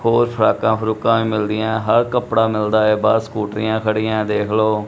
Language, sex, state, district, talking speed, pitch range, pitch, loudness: Punjabi, male, Punjab, Kapurthala, 195 wpm, 110-115 Hz, 110 Hz, -17 LUFS